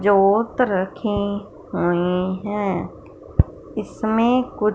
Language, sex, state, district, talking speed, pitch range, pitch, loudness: Hindi, female, Punjab, Fazilka, 75 wpm, 190-220 Hz, 205 Hz, -21 LUFS